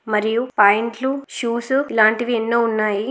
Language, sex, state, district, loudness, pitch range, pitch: Telugu, female, Telangana, Karimnagar, -18 LUFS, 215-240 Hz, 230 Hz